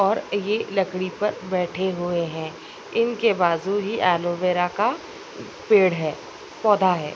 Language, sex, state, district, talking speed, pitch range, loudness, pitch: Hindi, female, Bihar, Saharsa, 135 wpm, 175-210 Hz, -23 LUFS, 185 Hz